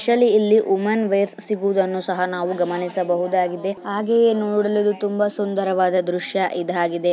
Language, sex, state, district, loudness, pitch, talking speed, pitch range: Kannada, female, Karnataka, Bijapur, -20 LUFS, 195 Hz, 120 wpm, 180-210 Hz